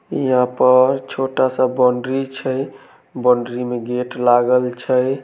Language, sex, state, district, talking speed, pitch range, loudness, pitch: Maithili, male, Bihar, Samastipur, 125 wpm, 125-130 Hz, -17 LUFS, 125 Hz